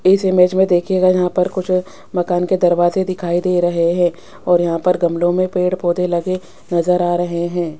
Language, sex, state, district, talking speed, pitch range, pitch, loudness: Hindi, female, Rajasthan, Jaipur, 200 wpm, 175-185 Hz, 180 Hz, -16 LUFS